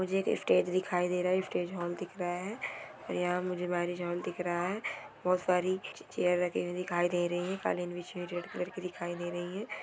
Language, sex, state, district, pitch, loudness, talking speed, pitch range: Hindi, female, Bihar, Gopalganj, 180 Hz, -33 LUFS, 240 wpm, 175-185 Hz